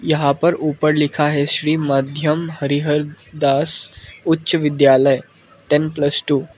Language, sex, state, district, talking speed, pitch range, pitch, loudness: Hindi, male, Arunachal Pradesh, Lower Dibang Valley, 135 wpm, 140-155 Hz, 150 Hz, -17 LUFS